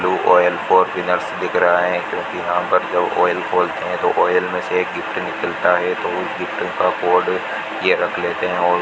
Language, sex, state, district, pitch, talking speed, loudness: Hindi, male, Rajasthan, Bikaner, 90 Hz, 225 wpm, -18 LUFS